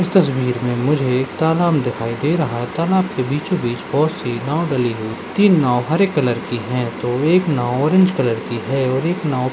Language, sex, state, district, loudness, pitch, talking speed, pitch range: Hindi, male, Uttar Pradesh, Ghazipur, -18 LUFS, 135 Hz, 220 wpm, 120-165 Hz